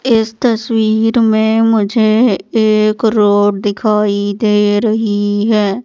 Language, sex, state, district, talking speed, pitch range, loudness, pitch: Hindi, female, Madhya Pradesh, Katni, 105 wpm, 205-225 Hz, -12 LUFS, 215 Hz